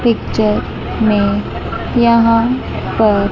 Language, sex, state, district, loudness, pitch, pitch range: Hindi, female, Chandigarh, Chandigarh, -15 LUFS, 225 Hz, 210-235 Hz